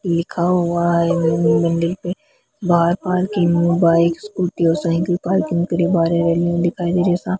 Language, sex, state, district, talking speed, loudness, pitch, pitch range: Hindi, female, Rajasthan, Bikaner, 170 wpm, -18 LUFS, 170 Hz, 170-180 Hz